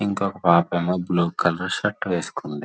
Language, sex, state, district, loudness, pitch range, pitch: Telugu, male, Andhra Pradesh, Srikakulam, -22 LUFS, 85-90 Hz, 85 Hz